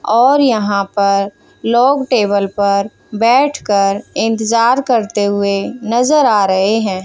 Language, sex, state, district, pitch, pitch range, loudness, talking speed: Hindi, female, Haryana, Jhajjar, 215 Hz, 200-245 Hz, -14 LUFS, 120 wpm